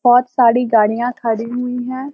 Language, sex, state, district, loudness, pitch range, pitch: Hindi, female, Uttar Pradesh, Varanasi, -16 LUFS, 230-250 Hz, 245 Hz